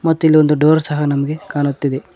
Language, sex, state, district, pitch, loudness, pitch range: Kannada, male, Karnataka, Koppal, 150 Hz, -15 LUFS, 145-155 Hz